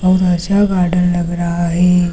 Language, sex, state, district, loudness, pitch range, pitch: Hindi, female, Uttar Pradesh, Lucknow, -14 LUFS, 175-185 Hz, 180 Hz